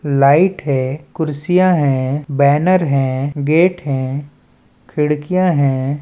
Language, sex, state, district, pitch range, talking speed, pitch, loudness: Chhattisgarhi, male, Chhattisgarh, Balrampur, 140-160 Hz, 100 wpm, 145 Hz, -15 LUFS